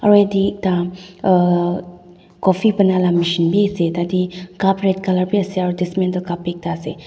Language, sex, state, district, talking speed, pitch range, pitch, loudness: Nagamese, female, Nagaland, Dimapur, 180 wpm, 175-190 Hz, 180 Hz, -18 LUFS